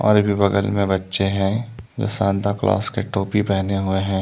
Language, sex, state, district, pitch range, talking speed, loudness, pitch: Hindi, male, Jharkhand, Deoghar, 95-105 Hz, 185 wpm, -20 LUFS, 100 Hz